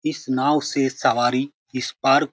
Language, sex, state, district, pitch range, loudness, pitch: Hindi, male, Bihar, Saran, 130-145 Hz, -21 LUFS, 130 Hz